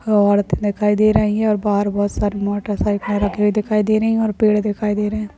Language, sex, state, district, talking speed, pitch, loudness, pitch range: Hindi, female, Chhattisgarh, Bastar, 245 wpm, 210 Hz, -18 LUFS, 205-215 Hz